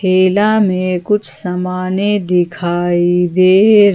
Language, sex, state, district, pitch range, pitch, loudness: Hindi, female, Jharkhand, Ranchi, 180-200 Hz, 185 Hz, -13 LUFS